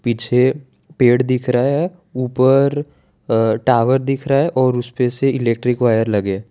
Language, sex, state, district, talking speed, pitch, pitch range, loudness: Hindi, male, Gujarat, Valsad, 165 wpm, 125 Hz, 120-135 Hz, -17 LUFS